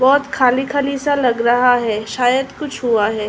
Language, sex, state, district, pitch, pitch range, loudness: Hindi, female, Uttar Pradesh, Ghazipur, 250 Hz, 235-275 Hz, -16 LUFS